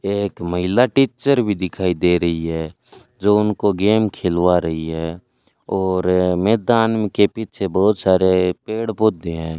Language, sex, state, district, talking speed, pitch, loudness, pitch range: Hindi, male, Rajasthan, Bikaner, 150 wpm, 95 Hz, -18 LUFS, 90-110 Hz